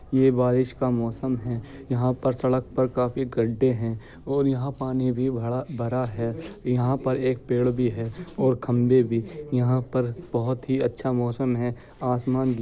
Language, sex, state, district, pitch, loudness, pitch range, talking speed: Hindi, male, Uttar Pradesh, Jyotiba Phule Nagar, 125 Hz, -25 LUFS, 120-130 Hz, 175 wpm